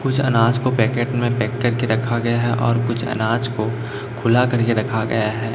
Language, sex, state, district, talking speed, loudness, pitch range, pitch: Hindi, male, Chhattisgarh, Raipur, 205 wpm, -19 LUFS, 115-125 Hz, 120 Hz